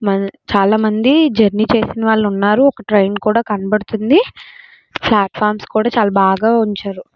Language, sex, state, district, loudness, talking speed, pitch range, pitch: Telugu, female, Andhra Pradesh, Srikakulam, -14 LUFS, 115 wpm, 205-230 Hz, 215 Hz